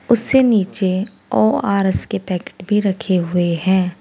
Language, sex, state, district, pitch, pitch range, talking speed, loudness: Hindi, female, Uttar Pradesh, Saharanpur, 190 Hz, 180-210 Hz, 135 wpm, -17 LUFS